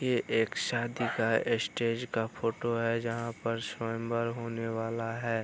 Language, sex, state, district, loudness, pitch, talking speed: Hindi, male, Bihar, Araria, -32 LUFS, 115 Hz, 145 wpm